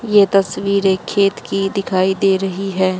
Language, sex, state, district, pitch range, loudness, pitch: Hindi, female, Haryana, Jhajjar, 190-200 Hz, -16 LUFS, 195 Hz